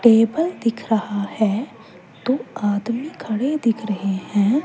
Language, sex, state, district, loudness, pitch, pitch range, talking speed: Hindi, female, Chandigarh, Chandigarh, -21 LUFS, 225 Hz, 205-250 Hz, 130 wpm